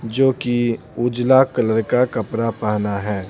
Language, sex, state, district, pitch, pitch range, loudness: Hindi, male, Bihar, Patna, 120 Hz, 110-125 Hz, -19 LUFS